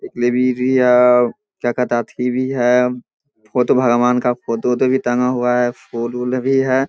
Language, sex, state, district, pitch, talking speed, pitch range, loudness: Hindi, male, Bihar, Darbhanga, 125 Hz, 185 wpm, 120-130 Hz, -17 LUFS